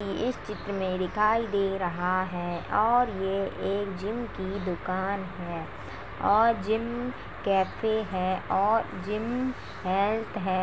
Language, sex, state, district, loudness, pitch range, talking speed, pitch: Hindi, female, Uttar Pradesh, Jalaun, -28 LUFS, 185-220 Hz, 125 wpm, 195 Hz